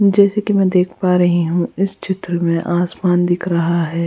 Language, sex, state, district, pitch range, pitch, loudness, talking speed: Hindi, female, Goa, North and South Goa, 170-190 Hz, 180 Hz, -16 LUFS, 205 wpm